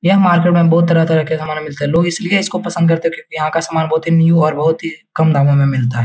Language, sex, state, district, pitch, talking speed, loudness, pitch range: Hindi, male, Bihar, Jahanabad, 165 Hz, 285 wpm, -14 LUFS, 155-170 Hz